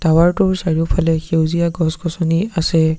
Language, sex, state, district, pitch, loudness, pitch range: Assamese, male, Assam, Sonitpur, 165 Hz, -17 LUFS, 160-170 Hz